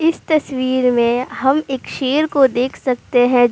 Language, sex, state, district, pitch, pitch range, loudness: Hindi, female, Uttar Pradesh, Jalaun, 260 Hz, 250-280 Hz, -17 LUFS